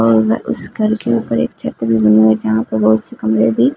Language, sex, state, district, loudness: Hindi, female, Punjab, Fazilka, -15 LUFS